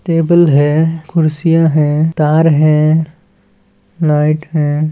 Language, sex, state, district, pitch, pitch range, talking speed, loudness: Chhattisgarhi, male, Chhattisgarh, Balrampur, 155 Hz, 150-165 Hz, 95 wpm, -12 LUFS